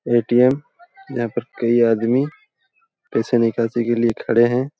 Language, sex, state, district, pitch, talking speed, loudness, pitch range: Hindi, male, Jharkhand, Jamtara, 120 Hz, 140 wpm, -19 LUFS, 115-140 Hz